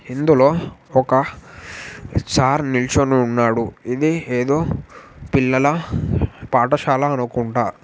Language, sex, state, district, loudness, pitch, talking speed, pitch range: Telugu, male, Telangana, Nalgonda, -18 LUFS, 130 Hz, 75 wpm, 125-145 Hz